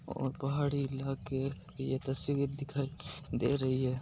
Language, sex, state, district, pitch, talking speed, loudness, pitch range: Hindi, male, Rajasthan, Nagaur, 135 Hz, 135 wpm, -35 LUFS, 130-140 Hz